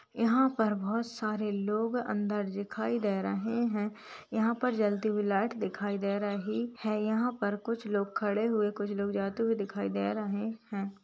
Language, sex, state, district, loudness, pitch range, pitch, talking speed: Hindi, female, Uttar Pradesh, Ghazipur, -32 LUFS, 205-225 Hz, 210 Hz, 180 wpm